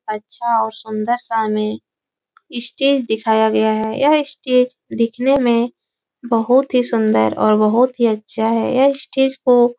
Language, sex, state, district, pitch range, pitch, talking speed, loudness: Hindi, female, Uttar Pradesh, Etah, 220-255 Hz, 235 Hz, 155 wpm, -17 LUFS